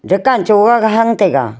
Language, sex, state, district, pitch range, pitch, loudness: Wancho, female, Arunachal Pradesh, Longding, 190-230 Hz, 215 Hz, -11 LUFS